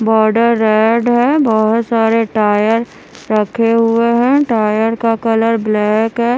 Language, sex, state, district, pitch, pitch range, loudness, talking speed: Hindi, female, Haryana, Charkhi Dadri, 225 Hz, 220-235 Hz, -13 LUFS, 130 wpm